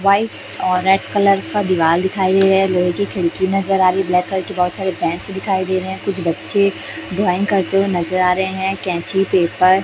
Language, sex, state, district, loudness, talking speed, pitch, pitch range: Hindi, female, Chhattisgarh, Raipur, -17 LUFS, 230 wpm, 190 Hz, 180-195 Hz